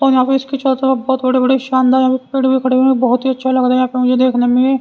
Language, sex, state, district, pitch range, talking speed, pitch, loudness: Hindi, male, Haryana, Rohtak, 255-265 Hz, 285 wpm, 260 Hz, -14 LUFS